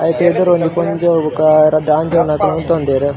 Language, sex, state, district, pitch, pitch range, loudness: Tulu, male, Karnataka, Dakshina Kannada, 160 Hz, 155-170 Hz, -13 LUFS